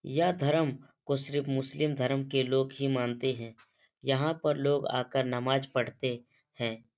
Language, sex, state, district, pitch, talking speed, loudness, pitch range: Hindi, male, Uttar Pradesh, Etah, 135 Hz, 165 wpm, -31 LUFS, 125-140 Hz